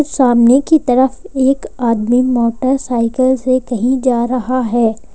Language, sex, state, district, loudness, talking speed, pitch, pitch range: Hindi, male, Uttar Pradesh, Lalitpur, -14 LUFS, 130 wpm, 255 Hz, 240-265 Hz